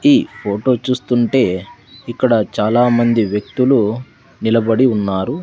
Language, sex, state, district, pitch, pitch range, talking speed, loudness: Telugu, male, Andhra Pradesh, Sri Satya Sai, 120 Hz, 105-130 Hz, 100 wpm, -16 LUFS